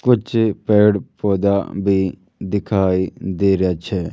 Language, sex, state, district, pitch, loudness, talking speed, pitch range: Hindi, male, Rajasthan, Jaipur, 100 Hz, -18 LUFS, 115 wpm, 95-105 Hz